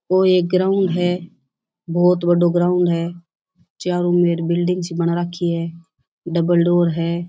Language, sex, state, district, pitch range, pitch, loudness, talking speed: Rajasthani, female, Rajasthan, Churu, 170-180 Hz, 175 Hz, -18 LUFS, 150 wpm